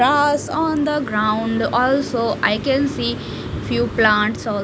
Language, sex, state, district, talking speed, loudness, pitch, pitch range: English, female, Punjab, Fazilka, 140 wpm, -19 LUFS, 225 Hz, 200-280 Hz